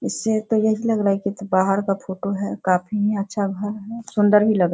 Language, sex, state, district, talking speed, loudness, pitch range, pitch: Hindi, female, Bihar, Sitamarhi, 240 wpm, -21 LUFS, 195-215 Hz, 205 Hz